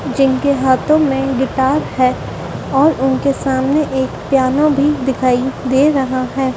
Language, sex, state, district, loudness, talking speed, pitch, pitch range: Hindi, female, Madhya Pradesh, Dhar, -15 LUFS, 135 wpm, 270 Hz, 260-280 Hz